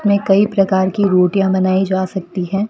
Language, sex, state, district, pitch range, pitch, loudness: Hindi, female, Rajasthan, Bikaner, 190-195 Hz, 190 Hz, -15 LUFS